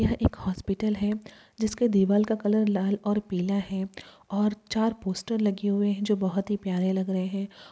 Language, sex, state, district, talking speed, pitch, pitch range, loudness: Hindi, female, Bihar, Jahanabad, 185 wpm, 205 Hz, 195-210 Hz, -27 LUFS